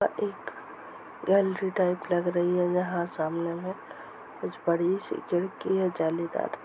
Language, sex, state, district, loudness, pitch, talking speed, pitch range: Hindi, male, Jharkhand, Sahebganj, -28 LUFS, 180 Hz, 125 wpm, 170-190 Hz